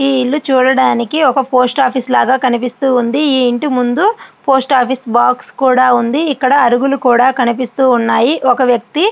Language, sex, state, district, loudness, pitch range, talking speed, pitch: Telugu, female, Andhra Pradesh, Srikakulam, -12 LUFS, 250-275 Hz, 130 wpm, 255 Hz